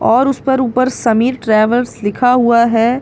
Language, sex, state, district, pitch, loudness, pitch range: Hindi, female, Bihar, Katihar, 240 Hz, -13 LUFS, 230-255 Hz